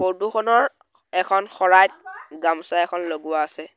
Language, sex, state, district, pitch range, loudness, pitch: Assamese, male, Assam, Sonitpur, 165-205 Hz, -20 LUFS, 185 Hz